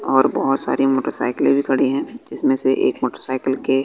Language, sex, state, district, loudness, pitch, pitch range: Hindi, male, Bihar, West Champaran, -19 LUFS, 135 Hz, 130-135 Hz